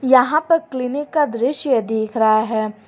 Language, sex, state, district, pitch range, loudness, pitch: Hindi, female, Jharkhand, Garhwa, 220-295 Hz, -18 LUFS, 255 Hz